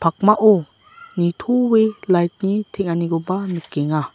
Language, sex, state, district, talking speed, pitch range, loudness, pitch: Garo, male, Meghalaya, South Garo Hills, 70 wpm, 170-215 Hz, -19 LUFS, 185 Hz